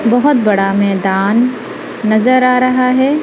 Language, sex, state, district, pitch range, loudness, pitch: Hindi, female, Punjab, Kapurthala, 200-255 Hz, -12 LUFS, 240 Hz